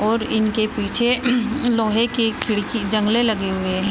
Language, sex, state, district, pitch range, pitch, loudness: Hindi, female, Uttar Pradesh, Shamli, 210-235 Hz, 220 Hz, -20 LUFS